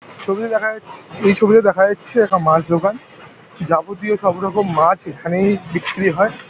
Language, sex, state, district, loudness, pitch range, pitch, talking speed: Bengali, male, West Bengal, Paschim Medinipur, -17 LUFS, 175-210 Hz, 195 Hz, 175 wpm